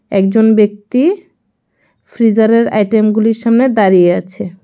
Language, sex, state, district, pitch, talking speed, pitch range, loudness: Bengali, female, Tripura, West Tripura, 220 Hz, 90 wpm, 205-230 Hz, -11 LUFS